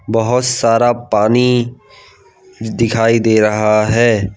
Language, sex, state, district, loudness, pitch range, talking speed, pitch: Hindi, male, Gujarat, Valsad, -13 LUFS, 105-120 Hz, 95 wpm, 115 Hz